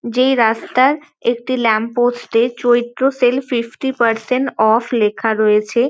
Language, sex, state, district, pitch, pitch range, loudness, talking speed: Bengali, female, West Bengal, North 24 Parganas, 240 Hz, 225-255 Hz, -16 LUFS, 120 wpm